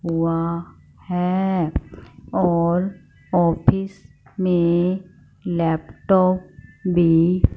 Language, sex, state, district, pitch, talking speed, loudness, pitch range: Hindi, female, Punjab, Fazilka, 175 Hz, 55 wpm, -21 LUFS, 165-185 Hz